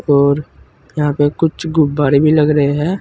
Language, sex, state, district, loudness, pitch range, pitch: Hindi, male, Uttar Pradesh, Saharanpur, -14 LUFS, 145-155 Hz, 150 Hz